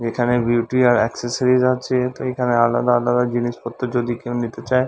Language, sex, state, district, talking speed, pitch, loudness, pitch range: Bengali, male, West Bengal, Dakshin Dinajpur, 170 wpm, 120 Hz, -19 LUFS, 120-125 Hz